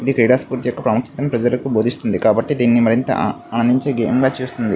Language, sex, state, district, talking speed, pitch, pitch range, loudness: Telugu, male, Andhra Pradesh, Visakhapatnam, 165 wpm, 125 Hz, 120-130 Hz, -17 LUFS